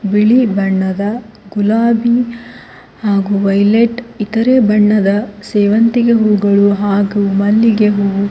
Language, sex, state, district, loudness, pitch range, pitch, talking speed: Kannada, female, Karnataka, Koppal, -12 LUFS, 200-230 Hz, 210 Hz, 85 wpm